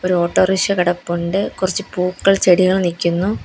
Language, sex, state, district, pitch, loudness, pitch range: Malayalam, female, Kerala, Kollam, 185 Hz, -17 LUFS, 175-190 Hz